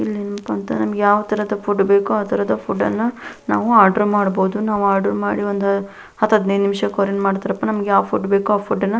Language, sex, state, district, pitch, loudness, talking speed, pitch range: Kannada, female, Karnataka, Belgaum, 200 Hz, -18 LUFS, 215 wpm, 195-210 Hz